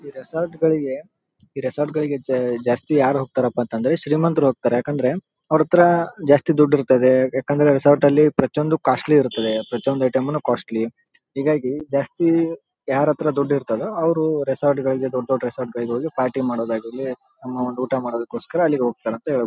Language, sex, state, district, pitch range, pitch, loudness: Kannada, male, Karnataka, Raichur, 125-155 Hz, 140 Hz, -20 LUFS